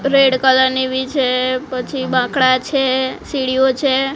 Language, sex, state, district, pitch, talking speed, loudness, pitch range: Gujarati, female, Gujarat, Gandhinagar, 260 Hz, 145 wpm, -16 LUFS, 260-270 Hz